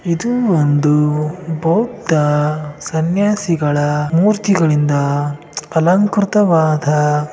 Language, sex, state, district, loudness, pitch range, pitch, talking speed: Kannada, male, Karnataka, Shimoga, -15 LUFS, 150-190 Hz, 160 Hz, 50 wpm